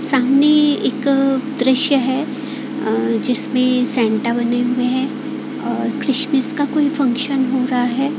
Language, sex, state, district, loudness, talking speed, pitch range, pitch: Hindi, female, Odisha, Khordha, -17 LUFS, 130 wpm, 255-280 Hz, 270 Hz